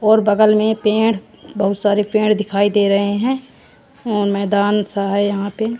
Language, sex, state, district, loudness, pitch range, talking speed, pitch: Hindi, female, Haryana, Jhajjar, -17 LUFS, 200-220 Hz, 165 wpm, 210 Hz